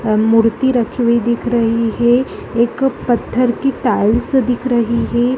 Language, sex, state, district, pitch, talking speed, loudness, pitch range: Hindi, female, Chhattisgarh, Balrampur, 240 Hz, 155 wpm, -15 LUFS, 230-250 Hz